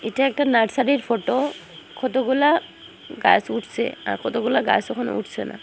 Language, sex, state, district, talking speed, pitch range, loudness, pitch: Bengali, female, Assam, Hailakandi, 140 wpm, 240-280 Hz, -21 LUFS, 260 Hz